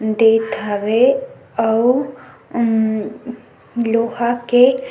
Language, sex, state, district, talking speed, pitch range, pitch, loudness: Chhattisgarhi, female, Chhattisgarh, Sukma, 75 wpm, 225-245 Hz, 235 Hz, -17 LUFS